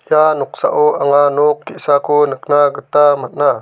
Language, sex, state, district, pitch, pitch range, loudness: Garo, male, Meghalaya, South Garo Hills, 145 Hz, 145-150 Hz, -13 LUFS